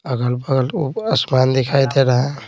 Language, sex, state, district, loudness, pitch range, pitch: Hindi, male, Bihar, Patna, -17 LUFS, 125-140 Hz, 135 Hz